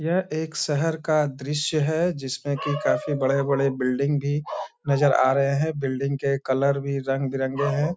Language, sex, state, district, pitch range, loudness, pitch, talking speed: Hindi, male, Bihar, Bhagalpur, 135-150 Hz, -24 LUFS, 140 Hz, 165 wpm